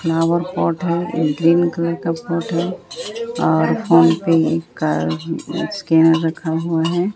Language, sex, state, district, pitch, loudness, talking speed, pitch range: Hindi, female, Bihar, Katihar, 170 Hz, -18 LUFS, 140 wpm, 165-175 Hz